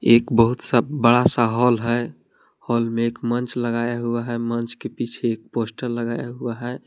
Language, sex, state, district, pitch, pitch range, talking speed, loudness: Hindi, male, Jharkhand, Palamu, 120 Hz, 115-120 Hz, 190 wpm, -22 LUFS